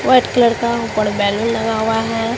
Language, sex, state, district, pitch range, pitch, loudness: Hindi, female, Bihar, Katihar, 220-235 Hz, 225 Hz, -16 LUFS